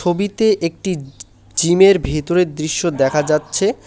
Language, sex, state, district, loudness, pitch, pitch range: Bengali, male, West Bengal, Alipurduar, -16 LUFS, 165 Hz, 150-185 Hz